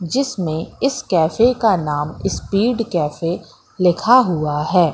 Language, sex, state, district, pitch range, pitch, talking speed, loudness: Hindi, female, Madhya Pradesh, Katni, 160-230 Hz, 175 Hz, 120 wpm, -18 LUFS